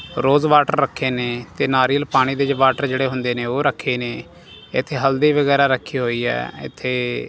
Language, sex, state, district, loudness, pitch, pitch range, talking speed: Punjabi, male, Punjab, Kapurthala, -19 LUFS, 130 Hz, 120-140 Hz, 190 wpm